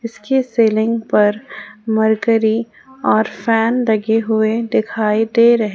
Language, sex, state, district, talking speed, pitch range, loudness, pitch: Hindi, female, Jharkhand, Ranchi, 125 wpm, 220-230 Hz, -16 LUFS, 225 Hz